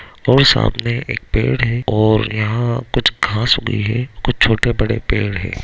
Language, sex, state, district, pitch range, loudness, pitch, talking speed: Hindi, male, Bihar, Darbhanga, 110-120 Hz, -16 LUFS, 115 Hz, 160 wpm